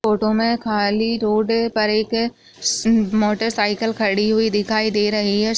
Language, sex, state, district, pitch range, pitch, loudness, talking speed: Hindi, female, Chhattisgarh, Raigarh, 210-225 Hz, 215 Hz, -19 LUFS, 150 wpm